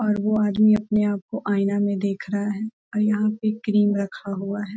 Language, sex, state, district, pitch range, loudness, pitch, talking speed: Hindi, female, Jharkhand, Sahebganj, 200-215 Hz, -23 LUFS, 210 Hz, 215 wpm